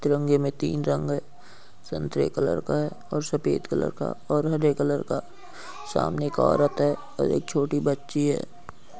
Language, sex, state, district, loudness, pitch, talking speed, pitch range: Hindi, male, Bihar, Saharsa, -26 LUFS, 145 Hz, 180 wpm, 145-155 Hz